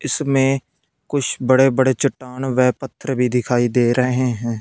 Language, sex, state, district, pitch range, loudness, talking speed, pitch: Hindi, male, Punjab, Fazilka, 125-135 Hz, -18 LUFS, 155 wpm, 130 Hz